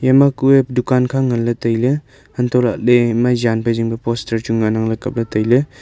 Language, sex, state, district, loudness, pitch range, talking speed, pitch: Wancho, male, Arunachal Pradesh, Longding, -16 LUFS, 115-130 Hz, 195 wpm, 120 Hz